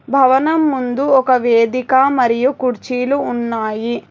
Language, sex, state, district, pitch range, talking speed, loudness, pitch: Telugu, female, Telangana, Hyderabad, 235-270 Hz, 100 wpm, -15 LUFS, 255 Hz